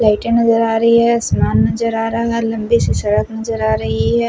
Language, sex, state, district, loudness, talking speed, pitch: Hindi, male, Punjab, Fazilka, -15 LUFS, 235 wpm, 220 Hz